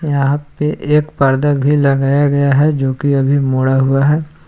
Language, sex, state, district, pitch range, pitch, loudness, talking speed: Hindi, male, Jharkhand, Palamu, 135-150 Hz, 140 Hz, -14 LUFS, 190 wpm